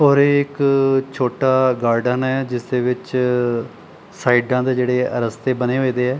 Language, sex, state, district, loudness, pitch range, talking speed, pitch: Punjabi, male, Punjab, Pathankot, -18 LUFS, 125-135 Hz, 145 wpm, 125 Hz